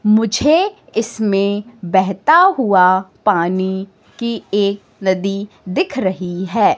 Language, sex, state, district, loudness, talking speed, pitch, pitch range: Hindi, female, Madhya Pradesh, Katni, -16 LUFS, 95 wpm, 200 Hz, 190-230 Hz